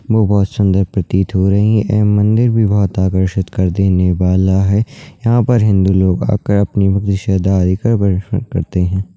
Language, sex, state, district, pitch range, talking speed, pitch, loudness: Hindi, male, Uttarakhand, Uttarkashi, 95-105 Hz, 185 wpm, 100 Hz, -14 LUFS